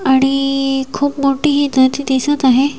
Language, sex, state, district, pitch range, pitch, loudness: Marathi, female, Maharashtra, Washim, 265-285 Hz, 275 Hz, -14 LUFS